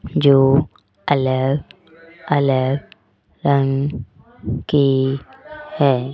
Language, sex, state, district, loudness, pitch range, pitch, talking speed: Hindi, female, Rajasthan, Jaipur, -18 LUFS, 135-150 Hz, 140 Hz, 60 wpm